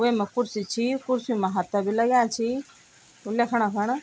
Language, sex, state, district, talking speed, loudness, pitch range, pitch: Garhwali, female, Uttarakhand, Tehri Garhwal, 165 wpm, -25 LUFS, 210-245 Hz, 235 Hz